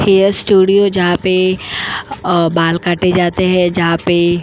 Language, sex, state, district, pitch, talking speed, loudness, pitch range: Hindi, female, Goa, North and South Goa, 180 Hz, 150 wpm, -13 LUFS, 175-190 Hz